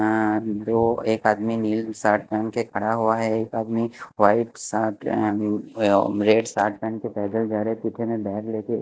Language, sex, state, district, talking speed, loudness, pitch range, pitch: Hindi, male, Maharashtra, Mumbai Suburban, 150 wpm, -23 LUFS, 105-115 Hz, 110 Hz